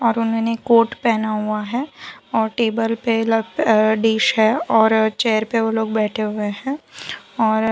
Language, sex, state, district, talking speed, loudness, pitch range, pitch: Hindi, female, Gujarat, Valsad, 180 wpm, -19 LUFS, 220-230 Hz, 225 Hz